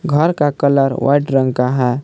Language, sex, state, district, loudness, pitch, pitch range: Hindi, male, Jharkhand, Palamu, -15 LUFS, 140 Hz, 130-145 Hz